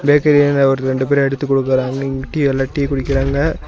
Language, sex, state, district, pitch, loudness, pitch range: Tamil, male, Tamil Nadu, Nilgiris, 135 Hz, -16 LUFS, 135-140 Hz